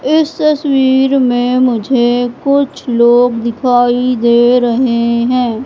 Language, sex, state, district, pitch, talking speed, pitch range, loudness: Hindi, female, Madhya Pradesh, Katni, 245 Hz, 105 wpm, 240-265 Hz, -11 LUFS